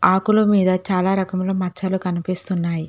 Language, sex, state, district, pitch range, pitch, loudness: Telugu, female, Telangana, Hyderabad, 185-190 Hz, 185 Hz, -20 LUFS